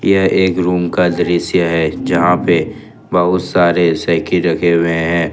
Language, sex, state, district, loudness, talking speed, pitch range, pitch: Hindi, male, Jharkhand, Ranchi, -14 LUFS, 160 wpm, 85-90 Hz, 90 Hz